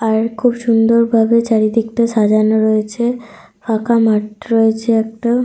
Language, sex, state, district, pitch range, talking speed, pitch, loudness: Bengali, female, Jharkhand, Sahebganj, 220-235 Hz, 120 wpm, 225 Hz, -14 LUFS